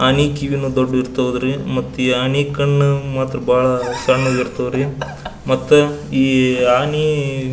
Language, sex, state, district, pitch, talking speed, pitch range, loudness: Kannada, male, Karnataka, Belgaum, 130 Hz, 125 wpm, 130-140 Hz, -17 LUFS